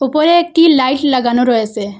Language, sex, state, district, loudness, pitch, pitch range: Bengali, female, Assam, Hailakandi, -12 LUFS, 260 Hz, 240-310 Hz